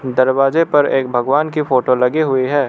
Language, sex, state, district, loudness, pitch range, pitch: Hindi, male, Arunachal Pradesh, Lower Dibang Valley, -15 LUFS, 130-150 Hz, 135 Hz